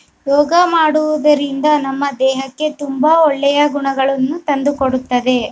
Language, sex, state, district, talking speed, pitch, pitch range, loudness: Kannada, female, Karnataka, Bellary, 100 wpm, 285 Hz, 270-300 Hz, -15 LUFS